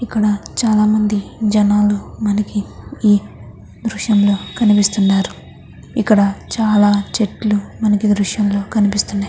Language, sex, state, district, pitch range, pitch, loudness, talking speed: Telugu, female, Andhra Pradesh, Chittoor, 205-215 Hz, 210 Hz, -16 LUFS, 105 wpm